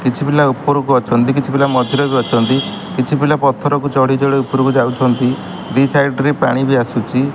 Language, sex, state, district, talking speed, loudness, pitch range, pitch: Odia, male, Odisha, Khordha, 190 wpm, -14 LUFS, 130-145 Hz, 135 Hz